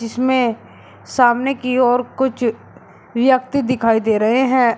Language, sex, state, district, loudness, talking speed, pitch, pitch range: Hindi, male, Uttar Pradesh, Shamli, -17 LUFS, 125 wpm, 250 Hz, 235-260 Hz